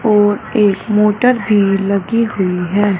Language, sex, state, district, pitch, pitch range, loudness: Hindi, female, Punjab, Fazilka, 205 Hz, 195-215 Hz, -14 LUFS